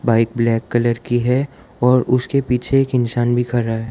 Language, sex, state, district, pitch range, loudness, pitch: Hindi, male, Gujarat, Valsad, 115-125 Hz, -18 LUFS, 120 Hz